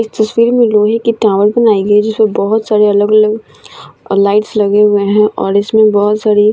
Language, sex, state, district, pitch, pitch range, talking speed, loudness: Hindi, female, Bihar, Vaishali, 210 Hz, 205-220 Hz, 200 wpm, -10 LUFS